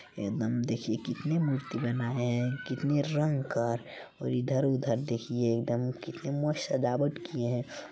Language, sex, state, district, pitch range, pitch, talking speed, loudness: Hindi, male, Bihar, Jamui, 120-145 Hz, 125 Hz, 135 wpm, -31 LUFS